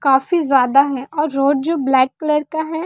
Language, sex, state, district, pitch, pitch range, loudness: Hindi, female, Bihar, West Champaran, 285 Hz, 270-315 Hz, -16 LUFS